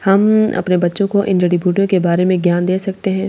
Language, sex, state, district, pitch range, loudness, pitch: Hindi, female, Delhi, New Delhi, 180-195 Hz, -15 LUFS, 190 Hz